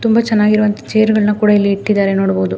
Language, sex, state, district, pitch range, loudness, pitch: Kannada, female, Karnataka, Mysore, 200-215 Hz, -13 LUFS, 210 Hz